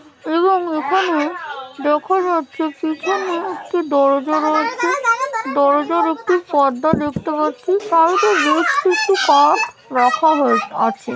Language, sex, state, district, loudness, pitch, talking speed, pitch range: Bengali, female, West Bengal, Paschim Medinipur, -17 LUFS, 315 Hz, 110 wpm, 290-370 Hz